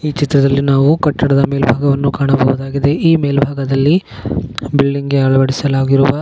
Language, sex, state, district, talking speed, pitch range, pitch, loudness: Kannada, male, Karnataka, Koppal, 95 wpm, 135-145 Hz, 140 Hz, -14 LUFS